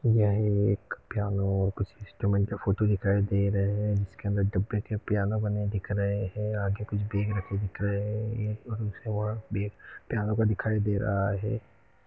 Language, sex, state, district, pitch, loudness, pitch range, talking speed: Hindi, male, Bihar, East Champaran, 105 Hz, -29 LUFS, 100-105 Hz, 175 wpm